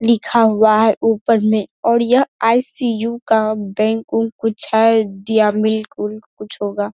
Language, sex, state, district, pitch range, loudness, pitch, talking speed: Hindi, female, Bihar, Saharsa, 215-230 Hz, -16 LUFS, 220 Hz, 155 wpm